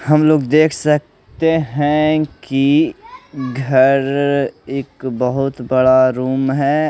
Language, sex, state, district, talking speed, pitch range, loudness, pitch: Hindi, male, Odisha, Malkangiri, 105 wpm, 130-155 Hz, -16 LUFS, 140 Hz